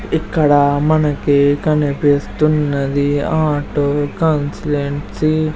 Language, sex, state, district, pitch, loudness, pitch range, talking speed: Telugu, male, Andhra Pradesh, Sri Satya Sai, 145 Hz, -16 LUFS, 145-155 Hz, 65 wpm